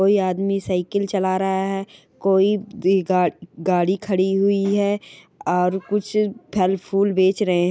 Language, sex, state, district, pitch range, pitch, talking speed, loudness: Hindi, female, Chhattisgarh, Rajnandgaon, 185-200 Hz, 195 Hz, 130 wpm, -21 LUFS